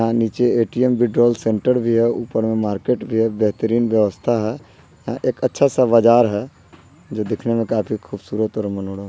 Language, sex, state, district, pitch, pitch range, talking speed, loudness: Hindi, male, Bihar, Sitamarhi, 115 Hz, 110-120 Hz, 185 wpm, -19 LUFS